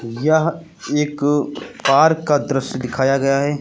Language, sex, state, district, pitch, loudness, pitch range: Hindi, male, Uttar Pradesh, Lucknow, 145 Hz, -18 LUFS, 135-155 Hz